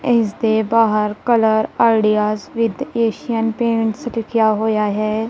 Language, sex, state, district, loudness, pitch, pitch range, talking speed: Punjabi, female, Punjab, Kapurthala, -17 LUFS, 225 Hz, 215-230 Hz, 125 wpm